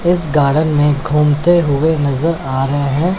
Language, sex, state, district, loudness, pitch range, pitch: Hindi, male, Chandigarh, Chandigarh, -14 LUFS, 140-165 Hz, 150 Hz